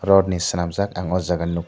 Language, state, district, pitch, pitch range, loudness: Kokborok, Tripura, Dhalai, 90 Hz, 85-95 Hz, -21 LUFS